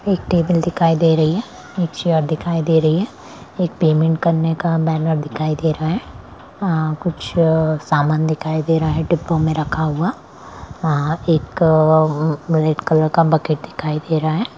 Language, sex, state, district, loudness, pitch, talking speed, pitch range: Hindi, female, Bihar, Darbhanga, -18 LUFS, 160 Hz, 175 wpm, 155-170 Hz